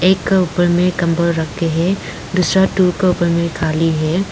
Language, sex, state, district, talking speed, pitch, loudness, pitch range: Hindi, female, Arunachal Pradesh, Lower Dibang Valley, 210 wpm, 175 Hz, -16 LUFS, 165-185 Hz